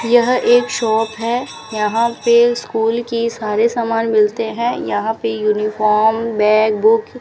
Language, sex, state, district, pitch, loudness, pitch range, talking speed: Hindi, female, Rajasthan, Bikaner, 225 Hz, -16 LUFS, 215-235 Hz, 150 wpm